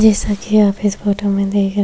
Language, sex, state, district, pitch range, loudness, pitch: Hindi, female, Maharashtra, Chandrapur, 200-210 Hz, -16 LUFS, 205 Hz